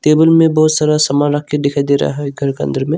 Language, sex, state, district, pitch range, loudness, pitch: Hindi, male, Arunachal Pradesh, Longding, 140-155 Hz, -13 LUFS, 145 Hz